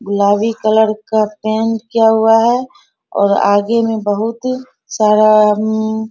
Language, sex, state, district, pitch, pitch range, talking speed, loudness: Hindi, female, Bihar, Bhagalpur, 220 Hz, 210-225 Hz, 135 wpm, -13 LUFS